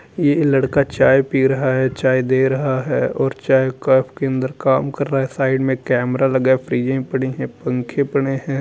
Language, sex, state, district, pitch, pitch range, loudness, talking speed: Hindi, male, Uttar Pradesh, Muzaffarnagar, 130 Hz, 130-135 Hz, -18 LUFS, 200 wpm